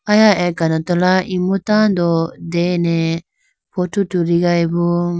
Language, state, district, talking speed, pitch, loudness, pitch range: Idu Mishmi, Arunachal Pradesh, Lower Dibang Valley, 80 wpm, 175 Hz, -16 LUFS, 170-190 Hz